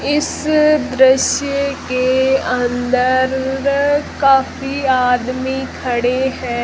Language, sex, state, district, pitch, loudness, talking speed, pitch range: Hindi, female, Rajasthan, Jaisalmer, 265 Hz, -16 LUFS, 70 wpm, 255-280 Hz